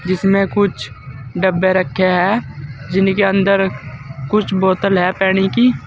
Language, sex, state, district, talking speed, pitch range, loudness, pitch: Hindi, male, Uttar Pradesh, Saharanpur, 125 wpm, 140-195 Hz, -15 LUFS, 190 Hz